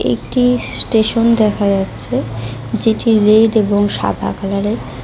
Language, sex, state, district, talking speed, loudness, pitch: Bengali, female, West Bengal, Cooch Behar, 120 wpm, -15 LUFS, 200 Hz